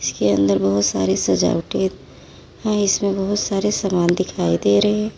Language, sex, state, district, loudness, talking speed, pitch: Hindi, female, Uttar Pradesh, Lalitpur, -19 LUFS, 175 wpm, 175 Hz